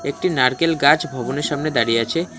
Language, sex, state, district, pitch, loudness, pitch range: Bengali, male, West Bengal, Alipurduar, 145 Hz, -19 LUFS, 130-165 Hz